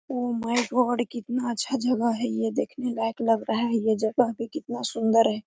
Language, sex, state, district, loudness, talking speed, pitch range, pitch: Hindi, female, Jharkhand, Sahebganj, -26 LUFS, 210 wpm, 225-245 Hz, 235 Hz